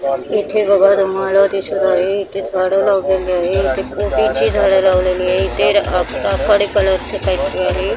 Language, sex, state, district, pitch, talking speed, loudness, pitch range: Marathi, female, Maharashtra, Mumbai Suburban, 190 Hz, 130 wpm, -15 LUFS, 185-200 Hz